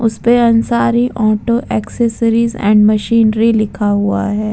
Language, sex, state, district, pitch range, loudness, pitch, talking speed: Hindi, female, Bihar, Vaishali, 210-235 Hz, -13 LUFS, 225 Hz, 130 wpm